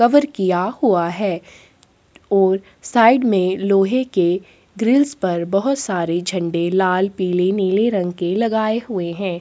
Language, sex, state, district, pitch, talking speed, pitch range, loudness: Hindi, female, Chhattisgarh, Korba, 195 Hz, 140 wpm, 180-225 Hz, -18 LUFS